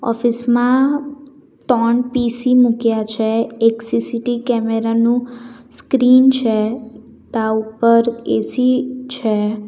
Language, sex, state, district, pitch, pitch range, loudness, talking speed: Gujarati, female, Gujarat, Valsad, 235 Hz, 225-250 Hz, -16 LUFS, 100 wpm